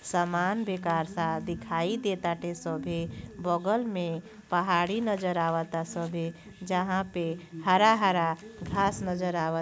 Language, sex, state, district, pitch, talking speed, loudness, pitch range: Bhojpuri, female, Uttar Pradesh, Gorakhpur, 175 Hz, 120 wpm, -29 LUFS, 165-190 Hz